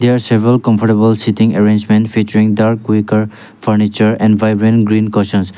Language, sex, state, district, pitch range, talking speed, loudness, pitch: English, male, Nagaland, Dimapur, 105-110 Hz, 140 wpm, -12 LUFS, 110 Hz